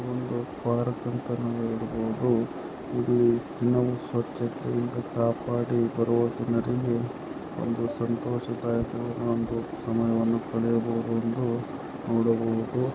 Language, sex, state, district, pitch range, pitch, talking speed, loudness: Kannada, male, Karnataka, Chamarajanagar, 115-120 Hz, 115 Hz, 80 wpm, -28 LUFS